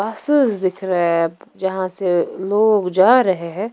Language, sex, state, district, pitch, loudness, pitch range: Hindi, female, Punjab, Pathankot, 190 Hz, -18 LUFS, 180-210 Hz